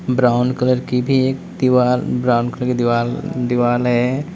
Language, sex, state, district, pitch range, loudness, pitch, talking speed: Hindi, male, Uttar Pradesh, Lalitpur, 120-130 Hz, -17 LUFS, 125 Hz, 165 wpm